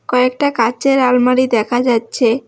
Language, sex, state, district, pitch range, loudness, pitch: Bengali, female, West Bengal, Alipurduar, 235-260 Hz, -14 LUFS, 250 Hz